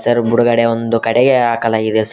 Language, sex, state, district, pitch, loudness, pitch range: Kannada, male, Karnataka, Koppal, 115 Hz, -14 LUFS, 115-120 Hz